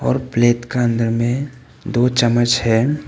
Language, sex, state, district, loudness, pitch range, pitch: Hindi, male, Arunachal Pradesh, Papum Pare, -17 LUFS, 115-125 Hz, 120 Hz